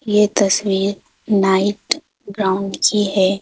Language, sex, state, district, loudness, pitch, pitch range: Hindi, female, Madhya Pradesh, Bhopal, -17 LUFS, 200 Hz, 195-210 Hz